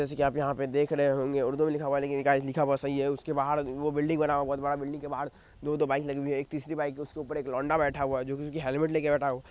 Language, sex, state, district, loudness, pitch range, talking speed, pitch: Hindi, male, Bihar, Madhepura, -29 LUFS, 140-150 Hz, 320 wpm, 140 Hz